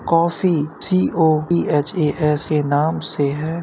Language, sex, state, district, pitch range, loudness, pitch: Hindi, male, Uttar Pradesh, Jyotiba Phule Nagar, 145-165 Hz, -18 LUFS, 155 Hz